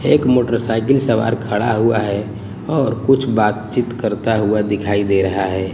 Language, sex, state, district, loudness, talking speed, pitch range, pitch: Hindi, male, Gujarat, Gandhinagar, -17 LUFS, 155 wpm, 105-120 Hz, 110 Hz